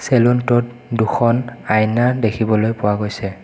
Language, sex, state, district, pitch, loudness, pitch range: Assamese, male, Assam, Kamrup Metropolitan, 115 Hz, -17 LUFS, 110-120 Hz